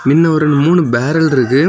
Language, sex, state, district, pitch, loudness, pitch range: Tamil, male, Tamil Nadu, Kanyakumari, 150 Hz, -12 LUFS, 135-160 Hz